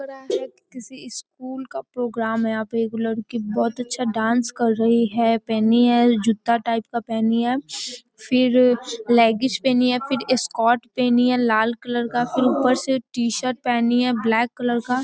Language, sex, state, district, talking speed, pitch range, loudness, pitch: Hindi, female, Bihar, East Champaran, 170 wpm, 230-255 Hz, -20 LUFS, 240 Hz